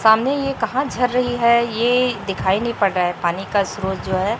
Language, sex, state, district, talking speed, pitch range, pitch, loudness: Hindi, female, Chhattisgarh, Raipur, 230 wpm, 190-245 Hz, 225 Hz, -19 LUFS